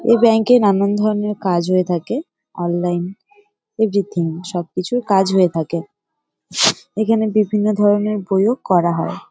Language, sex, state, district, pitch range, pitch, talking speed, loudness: Bengali, female, West Bengal, Jalpaiguri, 180-220 Hz, 200 Hz, 150 wpm, -17 LUFS